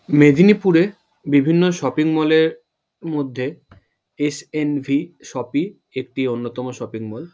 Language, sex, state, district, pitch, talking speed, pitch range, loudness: Bengali, male, West Bengal, Paschim Medinipur, 145 Hz, 105 wpm, 130-160 Hz, -19 LUFS